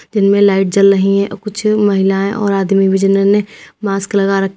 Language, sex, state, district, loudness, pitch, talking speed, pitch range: Hindi, female, Uttar Pradesh, Lalitpur, -13 LUFS, 195 Hz, 170 wpm, 195-205 Hz